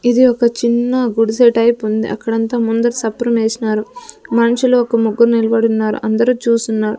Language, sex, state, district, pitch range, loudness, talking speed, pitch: Telugu, female, Andhra Pradesh, Sri Satya Sai, 225-240 Hz, -15 LUFS, 120 wpm, 230 Hz